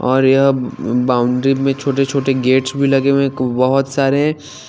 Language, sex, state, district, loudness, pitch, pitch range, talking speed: Hindi, female, Haryana, Charkhi Dadri, -15 LUFS, 135 Hz, 130-140 Hz, 190 wpm